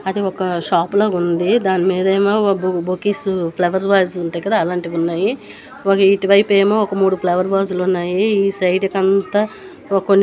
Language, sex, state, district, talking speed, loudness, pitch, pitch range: Telugu, female, Andhra Pradesh, Srikakulam, 160 wpm, -17 LUFS, 195 Hz, 180-200 Hz